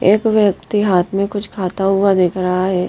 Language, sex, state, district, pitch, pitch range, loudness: Hindi, female, Madhya Pradesh, Bhopal, 195 Hz, 185-205 Hz, -16 LUFS